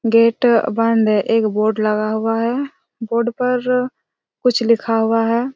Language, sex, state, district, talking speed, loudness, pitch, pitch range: Hindi, female, Chhattisgarh, Raigarh, 140 wpm, -17 LUFS, 230 Hz, 225-245 Hz